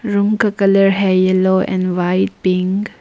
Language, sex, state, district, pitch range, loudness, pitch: Hindi, female, Arunachal Pradesh, Papum Pare, 185-200 Hz, -15 LUFS, 190 Hz